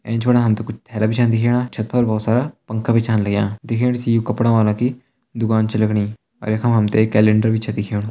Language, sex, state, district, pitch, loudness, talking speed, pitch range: Hindi, male, Uttarakhand, Tehri Garhwal, 110 Hz, -18 LUFS, 260 wpm, 110-120 Hz